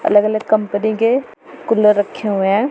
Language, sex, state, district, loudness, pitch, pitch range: Hindi, female, Punjab, Pathankot, -16 LUFS, 210 Hz, 205-220 Hz